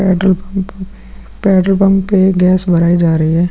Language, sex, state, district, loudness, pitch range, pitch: Hindi, male, Bihar, Vaishali, -12 LUFS, 175-195 Hz, 190 Hz